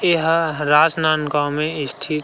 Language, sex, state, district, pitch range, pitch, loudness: Chhattisgarhi, male, Chhattisgarh, Rajnandgaon, 150-160 Hz, 155 Hz, -18 LUFS